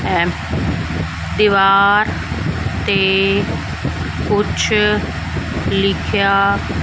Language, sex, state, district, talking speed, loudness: Punjabi, female, Punjab, Fazilka, 55 wpm, -16 LUFS